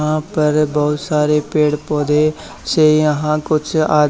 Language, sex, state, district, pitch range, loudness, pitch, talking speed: Hindi, male, Haryana, Charkhi Dadri, 150-155 Hz, -16 LUFS, 150 Hz, 145 wpm